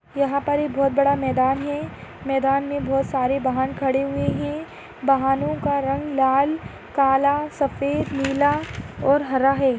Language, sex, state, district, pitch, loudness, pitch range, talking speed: Hindi, female, Maharashtra, Aurangabad, 275 Hz, -22 LUFS, 270-285 Hz, 145 wpm